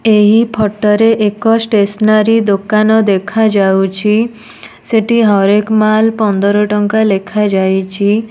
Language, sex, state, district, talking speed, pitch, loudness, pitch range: Odia, female, Odisha, Nuapada, 85 wpm, 215 Hz, -11 LUFS, 200-220 Hz